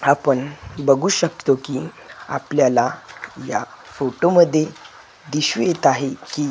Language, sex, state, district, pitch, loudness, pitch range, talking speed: Marathi, male, Maharashtra, Gondia, 145 Hz, -19 LUFS, 135-160 Hz, 85 wpm